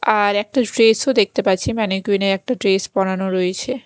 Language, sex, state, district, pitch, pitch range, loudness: Bengali, female, Chhattisgarh, Raipur, 200 Hz, 190-225 Hz, -18 LUFS